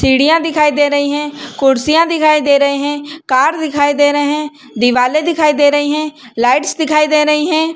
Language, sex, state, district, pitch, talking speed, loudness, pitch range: Hindi, female, Chhattisgarh, Bilaspur, 295 Hz, 195 wpm, -13 LUFS, 285-305 Hz